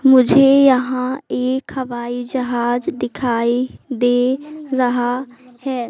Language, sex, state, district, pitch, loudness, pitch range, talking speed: Hindi, female, Madhya Pradesh, Katni, 255 Hz, -17 LUFS, 245-265 Hz, 90 wpm